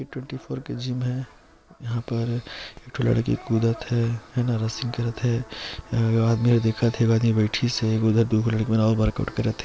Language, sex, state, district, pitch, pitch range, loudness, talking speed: Chhattisgarhi, male, Chhattisgarh, Sarguja, 115 Hz, 110-120 Hz, -24 LUFS, 210 wpm